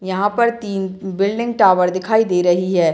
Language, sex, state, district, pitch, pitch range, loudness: Hindi, female, Bihar, Muzaffarpur, 190 Hz, 180-220 Hz, -17 LUFS